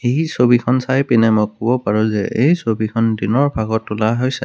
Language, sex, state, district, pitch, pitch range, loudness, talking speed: Assamese, male, Assam, Kamrup Metropolitan, 115 Hz, 110-130 Hz, -16 LUFS, 175 wpm